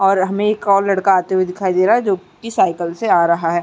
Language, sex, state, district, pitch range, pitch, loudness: Hindi, female, Uttar Pradesh, Muzaffarnagar, 180-200 Hz, 190 Hz, -16 LUFS